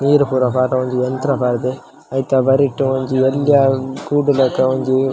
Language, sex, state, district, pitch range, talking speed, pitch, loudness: Tulu, male, Karnataka, Dakshina Kannada, 130-135 Hz, 165 wpm, 130 Hz, -16 LUFS